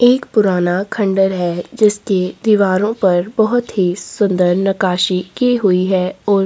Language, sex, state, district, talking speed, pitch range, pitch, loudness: Hindi, female, Chhattisgarh, Korba, 150 wpm, 185-215 Hz, 195 Hz, -15 LUFS